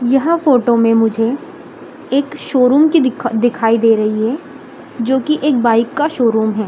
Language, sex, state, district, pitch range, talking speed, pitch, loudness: Hindi, female, Bihar, Samastipur, 230-290 Hz, 170 wpm, 250 Hz, -14 LUFS